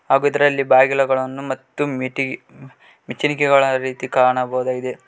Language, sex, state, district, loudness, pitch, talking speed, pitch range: Kannada, male, Karnataka, Koppal, -18 LUFS, 130 Hz, 95 wpm, 130-140 Hz